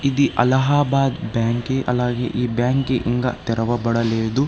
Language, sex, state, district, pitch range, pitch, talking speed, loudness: Telugu, male, Telangana, Hyderabad, 120-135 Hz, 125 Hz, 105 wpm, -20 LUFS